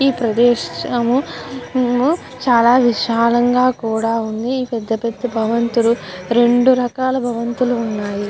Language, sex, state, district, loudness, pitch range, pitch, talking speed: Telugu, female, Andhra Pradesh, Guntur, -17 LUFS, 230-255 Hz, 240 Hz, 110 wpm